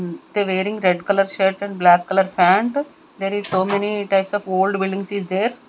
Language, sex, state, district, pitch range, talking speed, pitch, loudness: English, female, Punjab, Kapurthala, 190-205 Hz, 210 wpm, 195 Hz, -19 LUFS